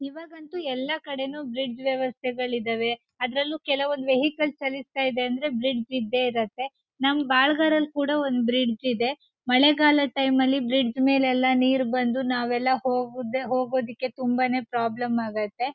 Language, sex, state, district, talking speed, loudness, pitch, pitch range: Kannada, female, Karnataka, Shimoga, 135 wpm, -25 LUFS, 260 Hz, 250-275 Hz